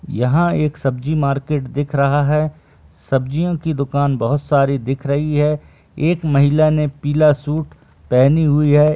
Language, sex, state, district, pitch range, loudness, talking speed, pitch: Hindi, male, Chhattisgarh, Bilaspur, 140-150 Hz, -17 LUFS, 155 wpm, 145 Hz